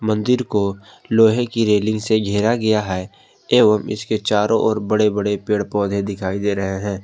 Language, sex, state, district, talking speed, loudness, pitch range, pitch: Hindi, male, Jharkhand, Palamu, 180 wpm, -18 LUFS, 100-110 Hz, 105 Hz